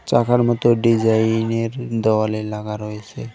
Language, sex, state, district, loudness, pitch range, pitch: Bengali, male, West Bengal, Cooch Behar, -19 LUFS, 110-120 Hz, 115 Hz